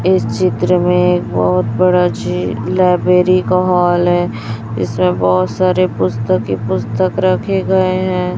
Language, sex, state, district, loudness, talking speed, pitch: Hindi, female, Chhattisgarh, Raipur, -14 LUFS, 145 wpm, 175 Hz